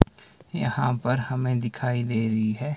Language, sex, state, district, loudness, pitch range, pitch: Hindi, male, Himachal Pradesh, Shimla, -26 LUFS, 115-125 Hz, 125 Hz